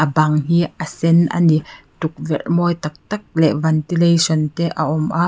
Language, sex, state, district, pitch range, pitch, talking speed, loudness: Mizo, female, Mizoram, Aizawl, 155-170 Hz, 160 Hz, 180 wpm, -18 LUFS